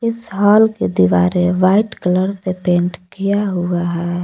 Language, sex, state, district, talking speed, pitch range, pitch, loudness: Hindi, female, Jharkhand, Palamu, 155 wpm, 175-200 Hz, 185 Hz, -16 LUFS